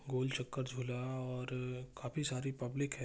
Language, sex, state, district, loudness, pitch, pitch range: Hindi, male, Jharkhand, Jamtara, -40 LUFS, 130 Hz, 125-135 Hz